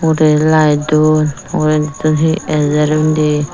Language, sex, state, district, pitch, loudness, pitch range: Chakma, female, Tripura, Dhalai, 155 Hz, -13 LUFS, 150-155 Hz